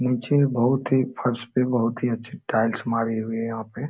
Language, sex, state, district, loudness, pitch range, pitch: Hindi, male, Jharkhand, Sahebganj, -24 LUFS, 115-125 Hz, 120 Hz